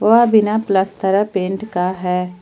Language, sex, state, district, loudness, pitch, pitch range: Hindi, female, Jharkhand, Ranchi, -17 LUFS, 195 Hz, 180-215 Hz